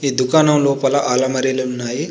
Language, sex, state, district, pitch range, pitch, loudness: Telugu, male, Telangana, Adilabad, 130-145 Hz, 135 Hz, -16 LUFS